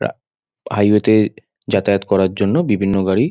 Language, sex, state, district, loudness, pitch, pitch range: Bengali, male, West Bengal, Dakshin Dinajpur, -16 LUFS, 100 Hz, 95-105 Hz